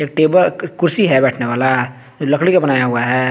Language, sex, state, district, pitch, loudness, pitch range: Hindi, male, Jharkhand, Garhwa, 135 Hz, -15 LUFS, 130-175 Hz